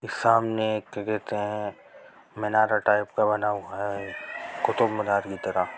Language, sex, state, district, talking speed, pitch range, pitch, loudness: Hindi, male, Bihar, Jahanabad, 145 wpm, 105-110 Hz, 105 Hz, -26 LUFS